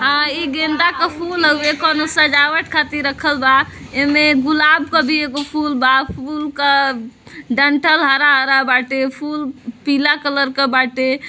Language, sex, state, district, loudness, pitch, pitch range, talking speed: Bhojpuri, female, Uttar Pradesh, Deoria, -15 LUFS, 290 Hz, 270-305 Hz, 150 wpm